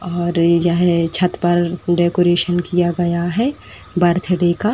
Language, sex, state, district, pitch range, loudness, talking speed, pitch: Hindi, female, Uttar Pradesh, Etah, 170-180 Hz, -16 LUFS, 125 wpm, 175 Hz